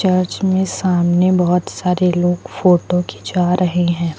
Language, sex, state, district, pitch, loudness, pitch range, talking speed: Hindi, female, Uttar Pradesh, Lucknow, 180 Hz, -16 LUFS, 175-185 Hz, 145 wpm